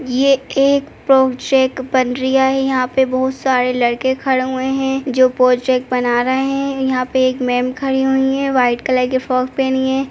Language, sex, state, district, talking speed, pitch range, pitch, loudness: Kumaoni, female, Uttarakhand, Uttarkashi, 190 wpm, 255-265 Hz, 260 Hz, -16 LUFS